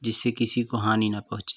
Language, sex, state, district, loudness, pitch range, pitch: Hindi, male, Uttar Pradesh, Varanasi, -26 LUFS, 110-120 Hz, 115 Hz